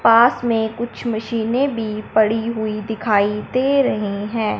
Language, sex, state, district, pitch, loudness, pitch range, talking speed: Hindi, male, Punjab, Fazilka, 225 Hz, -19 LUFS, 215-235 Hz, 145 wpm